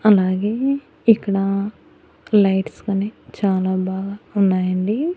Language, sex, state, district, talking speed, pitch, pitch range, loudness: Telugu, female, Andhra Pradesh, Annamaya, 80 wpm, 200 Hz, 190-215 Hz, -20 LUFS